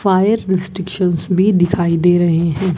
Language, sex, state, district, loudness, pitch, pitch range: Hindi, female, Rajasthan, Bikaner, -15 LUFS, 185 Hz, 175-190 Hz